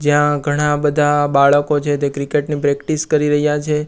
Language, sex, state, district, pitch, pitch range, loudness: Gujarati, male, Gujarat, Gandhinagar, 145 Hz, 145-150 Hz, -16 LUFS